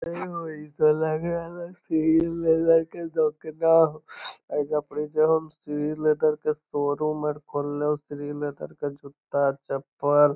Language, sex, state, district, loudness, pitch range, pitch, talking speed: Magahi, male, Bihar, Lakhisarai, -25 LUFS, 145-160 Hz, 150 Hz, 170 wpm